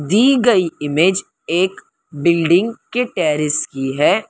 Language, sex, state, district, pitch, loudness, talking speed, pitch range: Hindi, female, Maharashtra, Mumbai Suburban, 170 Hz, -17 LUFS, 125 wpm, 150-200 Hz